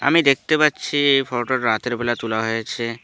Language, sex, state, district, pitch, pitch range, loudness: Bengali, male, West Bengal, Alipurduar, 120 Hz, 115-140 Hz, -19 LUFS